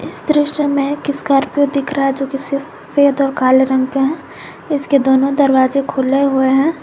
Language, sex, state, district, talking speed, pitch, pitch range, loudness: Hindi, female, Jharkhand, Garhwa, 195 wpm, 275 Hz, 270-285 Hz, -15 LUFS